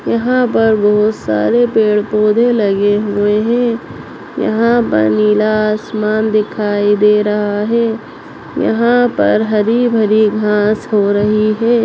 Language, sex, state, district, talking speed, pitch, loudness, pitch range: Hindi, female, Chhattisgarh, Bastar, 125 wpm, 215 Hz, -13 LUFS, 210-230 Hz